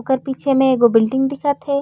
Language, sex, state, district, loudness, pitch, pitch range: Chhattisgarhi, female, Chhattisgarh, Raigarh, -16 LUFS, 265 Hz, 260-280 Hz